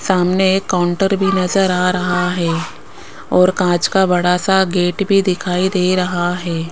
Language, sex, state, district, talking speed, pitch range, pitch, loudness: Hindi, female, Rajasthan, Jaipur, 170 wpm, 180-190 Hz, 180 Hz, -15 LUFS